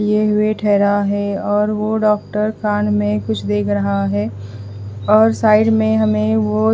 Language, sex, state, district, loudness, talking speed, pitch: Hindi, female, Bihar, West Champaran, -16 LUFS, 160 wpm, 210 Hz